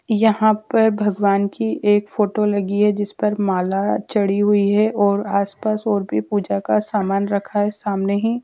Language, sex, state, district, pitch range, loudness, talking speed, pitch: Hindi, female, Madhya Pradesh, Dhar, 200-210 Hz, -19 LUFS, 185 wpm, 205 Hz